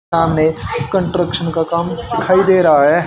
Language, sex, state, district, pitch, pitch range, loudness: Hindi, male, Haryana, Charkhi Dadri, 170 Hz, 160-175 Hz, -15 LUFS